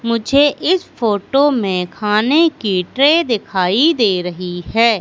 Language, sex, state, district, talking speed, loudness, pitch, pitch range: Hindi, female, Madhya Pradesh, Katni, 130 wpm, -15 LUFS, 230 Hz, 190-285 Hz